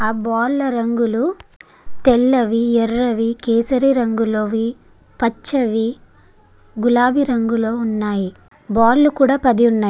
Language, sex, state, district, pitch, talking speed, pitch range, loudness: Telugu, female, Andhra Pradesh, Guntur, 235 Hz, 90 wpm, 225-250 Hz, -17 LUFS